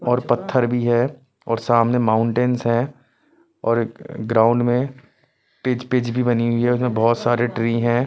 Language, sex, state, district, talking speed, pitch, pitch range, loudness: Hindi, male, Punjab, Pathankot, 170 wpm, 120 Hz, 115-125 Hz, -20 LUFS